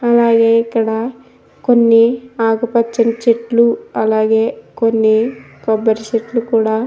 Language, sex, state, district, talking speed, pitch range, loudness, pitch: Telugu, female, Andhra Pradesh, Krishna, 95 wpm, 225-235 Hz, -14 LUFS, 230 Hz